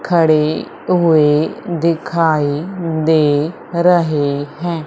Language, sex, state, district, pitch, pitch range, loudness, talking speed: Hindi, female, Madhya Pradesh, Umaria, 160 Hz, 150-170 Hz, -15 LUFS, 75 wpm